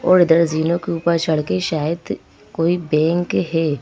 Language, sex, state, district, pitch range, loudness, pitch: Hindi, female, Madhya Pradesh, Bhopal, 155-170 Hz, -18 LUFS, 165 Hz